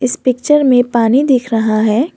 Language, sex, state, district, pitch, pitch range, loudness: Hindi, female, Assam, Kamrup Metropolitan, 250 Hz, 230-265 Hz, -12 LUFS